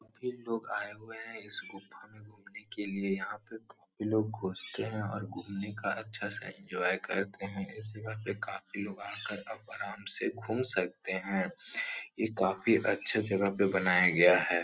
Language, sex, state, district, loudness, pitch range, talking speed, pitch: Hindi, male, Uttar Pradesh, Etah, -33 LUFS, 95-110 Hz, 190 wpm, 105 Hz